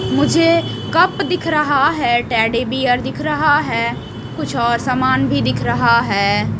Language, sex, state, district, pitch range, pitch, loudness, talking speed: Hindi, female, Odisha, Malkangiri, 200-295 Hz, 240 Hz, -16 LUFS, 155 wpm